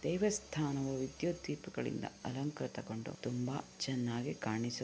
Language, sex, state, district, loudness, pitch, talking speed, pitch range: Kannada, female, Karnataka, Chamarajanagar, -39 LUFS, 130 Hz, 100 wpm, 125-150 Hz